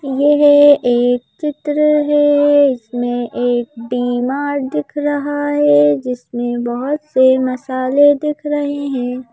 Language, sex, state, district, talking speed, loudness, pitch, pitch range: Hindi, female, Madhya Pradesh, Bhopal, 115 wpm, -15 LUFS, 270 Hz, 245-290 Hz